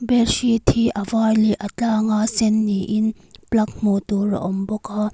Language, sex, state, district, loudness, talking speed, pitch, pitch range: Mizo, female, Mizoram, Aizawl, -20 LUFS, 210 wpm, 215 Hz, 205-225 Hz